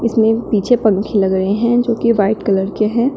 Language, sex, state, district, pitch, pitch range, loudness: Hindi, female, Uttar Pradesh, Shamli, 220 Hz, 200-235 Hz, -15 LUFS